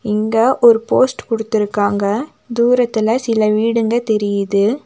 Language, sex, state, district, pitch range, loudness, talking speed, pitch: Tamil, female, Tamil Nadu, Nilgiris, 210-235 Hz, -15 LUFS, 100 wpm, 225 Hz